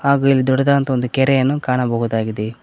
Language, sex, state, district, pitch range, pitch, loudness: Kannada, male, Karnataka, Koppal, 115-135 Hz, 130 Hz, -17 LUFS